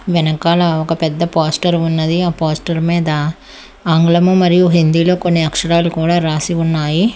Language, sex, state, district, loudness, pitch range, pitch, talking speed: Telugu, female, Telangana, Hyderabad, -14 LUFS, 160-175 Hz, 165 Hz, 135 wpm